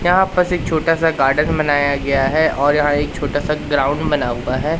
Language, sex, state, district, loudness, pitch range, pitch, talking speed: Hindi, male, Madhya Pradesh, Katni, -17 LUFS, 140-160 Hz, 150 Hz, 225 wpm